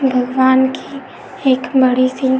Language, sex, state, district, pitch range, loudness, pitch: Hindi, female, Uttar Pradesh, Etah, 255-260 Hz, -14 LUFS, 260 Hz